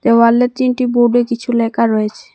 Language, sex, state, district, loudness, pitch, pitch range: Bengali, female, Assam, Hailakandi, -14 LUFS, 235 Hz, 230-245 Hz